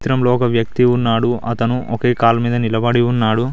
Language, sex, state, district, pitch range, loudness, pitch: Telugu, male, Telangana, Mahabubabad, 115-125 Hz, -16 LUFS, 120 Hz